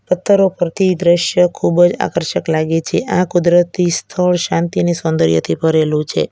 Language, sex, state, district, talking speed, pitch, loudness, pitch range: Gujarati, female, Gujarat, Valsad, 150 wpm, 175 Hz, -15 LUFS, 160-180 Hz